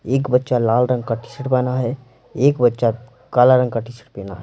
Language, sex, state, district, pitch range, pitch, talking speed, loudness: Hindi, male, Bihar, Patna, 115-125 Hz, 125 Hz, 230 wpm, -18 LUFS